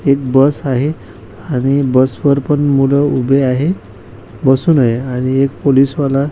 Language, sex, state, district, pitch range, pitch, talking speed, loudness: Marathi, male, Maharashtra, Washim, 125-140 Hz, 135 Hz, 160 wpm, -13 LUFS